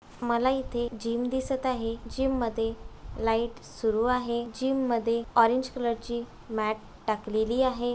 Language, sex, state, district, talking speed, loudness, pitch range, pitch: Marathi, female, Maharashtra, Aurangabad, 135 wpm, -29 LUFS, 225-250 Hz, 235 Hz